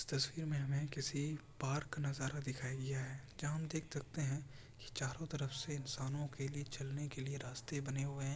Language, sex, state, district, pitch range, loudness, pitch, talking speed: Hindi, male, Bihar, Kishanganj, 135-145 Hz, -42 LUFS, 140 Hz, 200 wpm